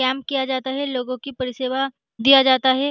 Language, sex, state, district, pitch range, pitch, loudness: Hindi, female, Chhattisgarh, Balrampur, 255-275 Hz, 265 Hz, -20 LUFS